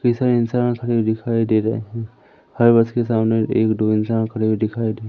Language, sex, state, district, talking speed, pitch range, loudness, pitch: Hindi, male, Madhya Pradesh, Umaria, 245 wpm, 110-120 Hz, -19 LUFS, 115 Hz